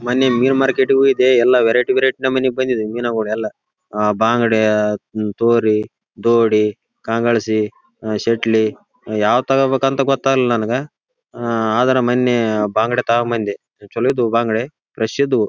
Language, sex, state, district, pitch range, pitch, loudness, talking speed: Kannada, male, Karnataka, Raichur, 110-130 Hz, 120 Hz, -17 LUFS, 140 wpm